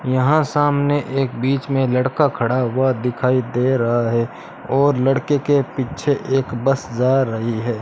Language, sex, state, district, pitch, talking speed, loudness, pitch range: Hindi, male, Rajasthan, Bikaner, 130 Hz, 160 wpm, -19 LUFS, 125-140 Hz